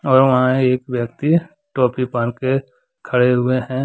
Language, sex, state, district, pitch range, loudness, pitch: Hindi, male, Jharkhand, Deoghar, 125-130 Hz, -18 LUFS, 130 Hz